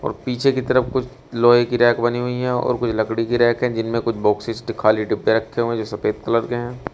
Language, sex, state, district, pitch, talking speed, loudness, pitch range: Hindi, male, Uttar Pradesh, Shamli, 120 Hz, 240 wpm, -20 LUFS, 115-125 Hz